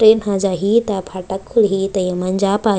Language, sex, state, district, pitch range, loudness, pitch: Chhattisgarhi, female, Chhattisgarh, Raigarh, 190-210 Hz, -17 LUFS, 195 Hz